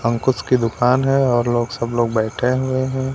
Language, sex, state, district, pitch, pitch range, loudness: Hindi, male, Maharashtra, Washim, 125 Hz, 115-130 Hz, -18 LUFS